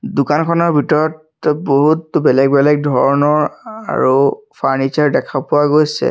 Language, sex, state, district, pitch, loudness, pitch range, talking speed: Assamese, male, Assam, Sonitpur, 150 Hz, -14 LUFS, 140-160 Hz, 125 wpm